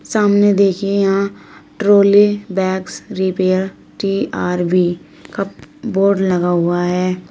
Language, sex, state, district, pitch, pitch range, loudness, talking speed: Hindi, female, Uttar Pradesh, Shamli, 195 Hz, 180-200 Hz, -16 LUFS, 100 wpm